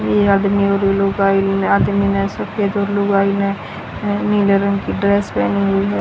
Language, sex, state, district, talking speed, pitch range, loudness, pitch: Hindi, female, Haryana, Rohtak, 170 wpm, 195-200 Hz, -16 LUFS, 200 Hz